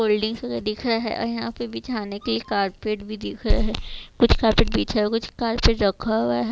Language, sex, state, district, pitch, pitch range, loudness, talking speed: Hindi, female, Bihar, Katihar, 215 Hz, 195-225 Hz, -23 LUFS, 210 wpm